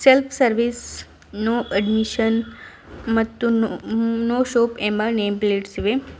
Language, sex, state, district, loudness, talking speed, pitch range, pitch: Kannada, female, Karnataka, Bidar, -21 LUFS, 115 wpm, 215-235 Hz, 225 Hz